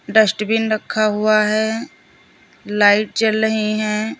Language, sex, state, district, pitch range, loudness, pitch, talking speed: Hindi, female, Uttar Pradesh, Lalitpur, 215-220 Hz, -17 LUFS, 215 Hz, 115 wpm